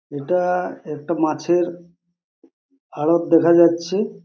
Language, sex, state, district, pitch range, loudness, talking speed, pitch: Bengali, male, West Bengal, Purulia, 165-180 Hz, -19 LUFS, 85 wpm, 170 Hz